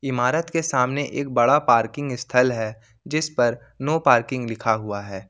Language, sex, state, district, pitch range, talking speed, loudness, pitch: Hindi, male, Jharkhand, Ranchi, 115-145 Hz, 170 wpm, -22 LUFS, 125 Hz